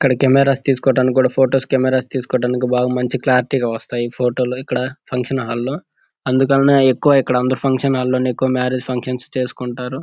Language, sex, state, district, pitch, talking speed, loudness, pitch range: Telugu, male, Andhra Pradesh, Guntur, 130 Hz, 170 wpm, -17 LUFS, 125-135 Hz